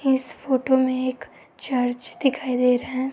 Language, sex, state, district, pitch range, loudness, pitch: Hindi, female, Uttar Pradesh, Gorakhpur, 250-265 Hz, -23 LUFS, 255 Hz